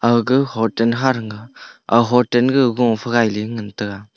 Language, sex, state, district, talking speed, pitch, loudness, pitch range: Wancho, male, Arunachal Pradesh, Longding, 160 wpm, 115 Hz, -17 LUFS, 110-125 Hz